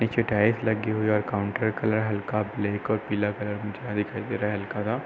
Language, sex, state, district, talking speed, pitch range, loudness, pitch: Hindi, male, Uttar Pradesh, Hamirpur, 260 wpm, 105-110 Hz, -27 LUFS, 105 Hz